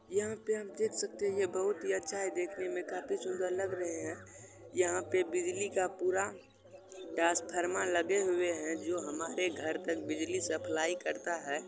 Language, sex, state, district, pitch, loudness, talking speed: Maithili, male, Bihar, Supaul, 185 Hz, -35 LUFS, 175 wpm